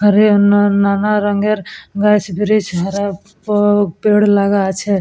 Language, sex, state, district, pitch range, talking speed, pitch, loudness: Bengali, female, West Bengal, Purulia, 200-210 Hz, 120 wpm, 205 Hz, -14 LUFS